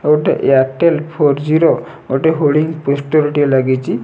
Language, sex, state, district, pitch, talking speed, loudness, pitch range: Odia, male, Odisha, Nuapada, 150 Hz, 165 wpm, -14 LUFS, 140-155 Hz